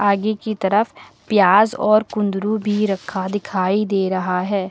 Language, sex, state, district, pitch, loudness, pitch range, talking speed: Hindi, female, Uttar Pradesh, Lucknow, 205 Hz, -19 LUFS, 190-210 Hz, 150 wpm